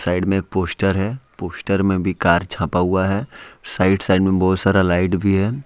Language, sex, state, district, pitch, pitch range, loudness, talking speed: Hindi, male, Jharkhand, Ranchi, 95 Hz, 90-95 Hz, -18 LUFS, 210 wpm